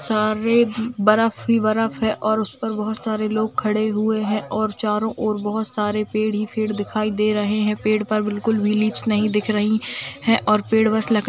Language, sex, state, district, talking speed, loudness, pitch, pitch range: Hindi, female, Bihar, Saharsa, 210 wpm, -20 LUFS, 215 Hz, 210-220 Hz